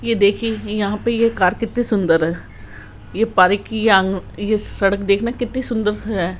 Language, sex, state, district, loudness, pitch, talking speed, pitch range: Hindi, male, Rajasthan, Jaipur, -18 LUFS, 210 Hz, 170 wpm, 185-225 Hz